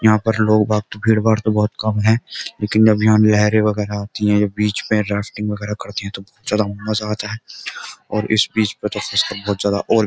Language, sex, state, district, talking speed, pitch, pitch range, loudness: Hindi, male, Uttar Pradesh, Jyotiba Phule Nagar, 240 wpm, 105 Hz, 105-110 Hz, -18 LUFS